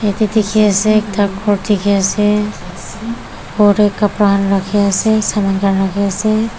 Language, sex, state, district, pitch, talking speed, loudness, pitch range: Nagamese, female, Nagaland, Dimapur, 205 Hz, 145 wpm, -14 LUFS, 200-215 Hz